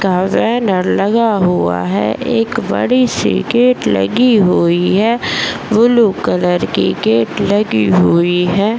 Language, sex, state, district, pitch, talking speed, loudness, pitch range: Hindi, female, Bihar, Bhagalpur, 195 Hz, 145 wpm, -13 LUFS, 170-230 Hz